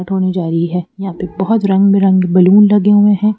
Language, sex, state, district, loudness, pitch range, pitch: Hindi, female, Madhya Pradesh, Bhopal, -12 LUFS, 185-205 Hz, 190 Hz